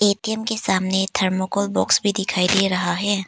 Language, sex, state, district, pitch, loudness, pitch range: Hindi, female, Arunachal Pradesh, Papum Pare, 195 Hz, -20 LUFS, 185-205 Hz